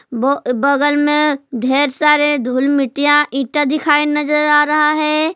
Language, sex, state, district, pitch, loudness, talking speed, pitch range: Hindi, female, Jharkhand, Palamu, 295 Hz, -14 LUFS, 145 wpm, 275-300 Hz